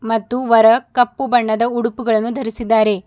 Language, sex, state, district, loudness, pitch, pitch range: Kannada, female, Karnataka, Bidar, -16 LUFS, 230 Hz, 225-245 Hz